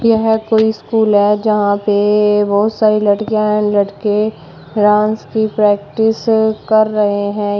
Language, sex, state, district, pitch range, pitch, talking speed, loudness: Hindi, female, Uttar Pradesh, Shamli, 205-220 Hz, 210 Hz, 135 wpm, -14 LUFS